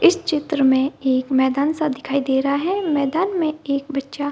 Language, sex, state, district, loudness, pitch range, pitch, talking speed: Hindi, female, Bihar, Gaya, -20 LUFS, 270-310 Hz, 285 Hz, 210 wpm